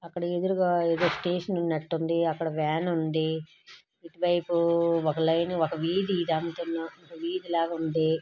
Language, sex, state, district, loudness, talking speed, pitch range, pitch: Telugu, female, Andhra Pradesh, Srikakulam, -28 LUFS, 130 wpm, 160-175 Hz, 170 Hz